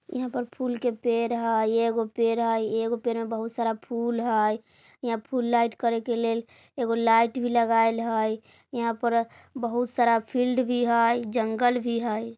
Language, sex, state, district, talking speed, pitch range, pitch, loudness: Bajjika, female, Bihar, Vaishali, 180 wpm, 230-240 Hz, 230 Hz, -26 LUFS